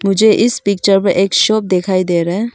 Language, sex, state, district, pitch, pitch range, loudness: Hindi, female, Arunachal Pradesh, Papum Pare, 195 Hz, 185-215 Hz, -13 LUFS